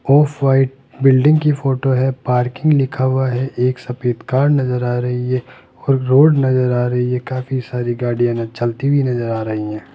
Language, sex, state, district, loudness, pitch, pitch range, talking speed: Hindi, male, Rajasthan, Jaipur, -17 LUFS, 130 Hz, 125-135 Hz, 195 wpm